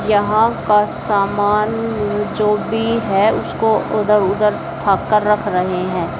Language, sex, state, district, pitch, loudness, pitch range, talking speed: Hindi, female, Haryana, Jhajjar, 210 Hz, -16 LUFS, 205-215 Hz, 135 wpm